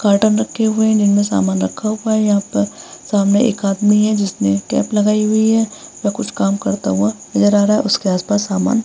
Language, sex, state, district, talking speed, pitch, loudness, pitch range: Hindi, female, Bihar, Vaishali, 225 wpm, 205 Hz, -16 LUFS, 190-215 Hz